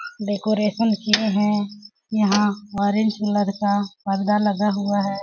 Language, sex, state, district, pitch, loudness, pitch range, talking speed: Hindi, female, Chhattisgarh, Balrampur, 205 Hz, -21 LUFS, 200-210 Hz, 125 wpm